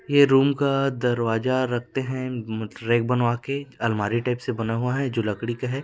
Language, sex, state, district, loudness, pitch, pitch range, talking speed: Hindi, male, Chhattisgarh, Rajnandgaon, -24 LUFS, 125 Hz, 115-135 Hz, 215 wpm